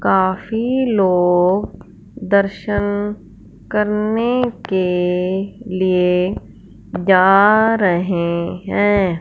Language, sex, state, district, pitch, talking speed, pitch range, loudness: Hindi, female, Punjab, Fazilka, 195 Hz, 60 wpm, 180-210 Hz, -17 LUFS